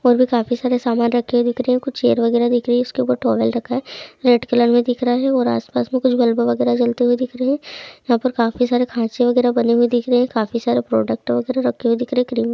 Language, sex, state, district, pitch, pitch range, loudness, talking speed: Hindi, female, Chhattisgarh, Korba, 240 Hz, 235-250 Hz, -18 LUFS, 275 wpm